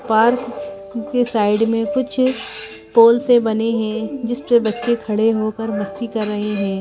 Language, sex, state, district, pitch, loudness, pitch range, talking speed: Hindi, female, Madhya Pradesh, Bhopal, 225 Hz, -18 LUFS, 210-240 Hz, 160 wpm